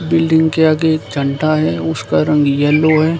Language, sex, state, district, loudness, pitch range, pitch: Hindi, male, Haryana, Charkhi Dadri, -14 LUFS, 140-160 Hz, 155 Hz